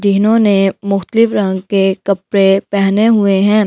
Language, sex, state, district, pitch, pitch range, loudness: Hindi, female, Delhi, New Delhi, 200 Hz, 195-210 Hz, -13 LUFS